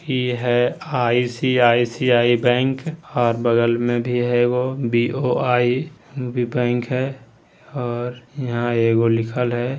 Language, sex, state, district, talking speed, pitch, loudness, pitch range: Hindi, male, Bihar, Madhepura, 110 wpm, 120 Hz, -20 LUFS, 120-130 Hz